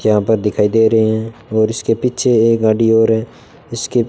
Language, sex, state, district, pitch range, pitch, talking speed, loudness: Hindi, male, Rajasthan, Bikaner, 110-115 Hz, 115 Hz, 205 wpm, -14 LUFS